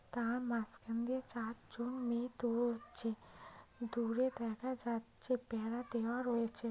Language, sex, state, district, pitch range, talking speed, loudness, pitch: Bengali, female, West Bengal, North 24 Parganas, 230-245 Hz, 115 wpm, -40 LUFS, 235 Hz